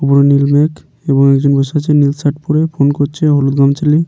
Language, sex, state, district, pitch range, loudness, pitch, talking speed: Bengali, male, West Bengal, Paschim Medinipur, 140-150 Hz, -12 LUFS, 145 Hz, 220 wpm